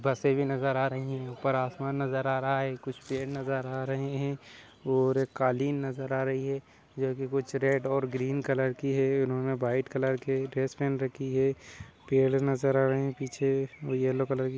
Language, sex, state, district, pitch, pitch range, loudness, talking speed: Hindi, male, Uttar Pradesh, Budaun, 135 Hz, 130-135 Hz, -30 LUFS, 220 wpm